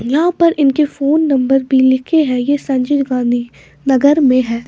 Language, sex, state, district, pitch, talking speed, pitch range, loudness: Hindi, female, Maharashtra, Washim, 270 Hz, 180 wpm, 255-290 Hz, -14 LUFS